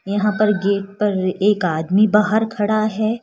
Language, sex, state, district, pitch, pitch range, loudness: Hindi, female, Rajasthan, Jaipur, 210 Hz, 195-215 Hz, -18 LUFS